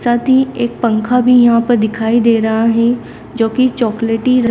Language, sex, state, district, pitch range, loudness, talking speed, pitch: Hindi, female, Uttar Pradesh, Lalitpur, 225-245 Hz, -13 LUFS, 185 wpm, 235 Hz